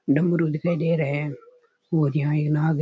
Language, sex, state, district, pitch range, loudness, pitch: Rajasthani, male, Rajasthan, Churu, 150-170 Hz, -23 LUFS, 160 Hz